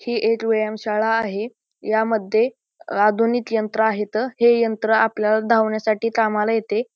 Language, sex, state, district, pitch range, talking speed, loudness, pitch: Marathi, male, Maharashtra, Pune, 215-230 Hz, 130 wpm, -20 LUFS, 220 Hz